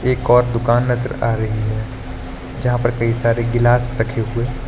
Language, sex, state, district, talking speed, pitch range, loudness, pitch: Hindi, male, Uttar Pradesh, Lucknow, 180 wpm, 115-125 Hz, -18 LUFS, 120 Hz